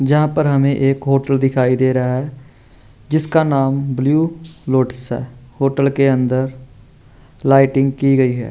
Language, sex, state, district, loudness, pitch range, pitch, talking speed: Hindi, male, Bihar, Vaishali, -16 LUFS, 130-140 Hz, 135 Hz, 150 wpm